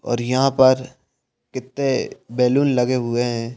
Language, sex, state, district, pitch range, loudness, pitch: Hindi, male, Madhya Pradesh, Bhopal, 120-130 Hz, -19 LUFS, 130 Hz